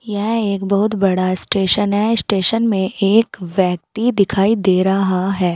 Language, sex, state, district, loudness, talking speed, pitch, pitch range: Hindi, female, Uttar Pradesh, Saharanpur, -16 LUFS, 150 wpm, 200 Hz, 190-210 Hz